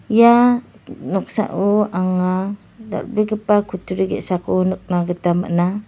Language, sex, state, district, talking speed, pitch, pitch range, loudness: Garo, female, Meghalaya, West Garo Hills, 90 wpm, 190 Hz, 185-210 Hz, -18 LUFS